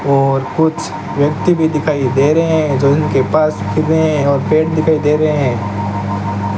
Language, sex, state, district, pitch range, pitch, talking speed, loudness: Hindi, male, Rajasthan, Bikaner, 130-155 Hz, 145 Hz, 180 wpm, -14 LUFS